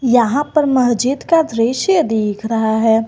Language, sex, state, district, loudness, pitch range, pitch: Hindi, female, Jharkhand, Garhwa, -15 LUFS, 225-285 Hz, 240 Hz